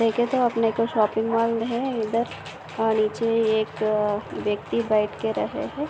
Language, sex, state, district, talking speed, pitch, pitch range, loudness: Hindi, female, Maharashtra, Aurangabad, 155 wpm, 225 Hz, 215-230 Hz, -24 LUFS